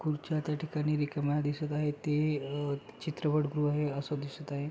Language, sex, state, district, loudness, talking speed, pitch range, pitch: Marathi, male, Maharashtra, Pune, -33 LUFS, 180 wpm, 145-150 Hz, 150 Hz